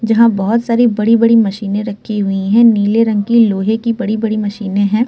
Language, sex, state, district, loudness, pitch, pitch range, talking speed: Hindi, female, Uttar Pradesh, Muzaffarnagar, -13 LUFS, 220 Hz, 205-230 Hz, 190 wpm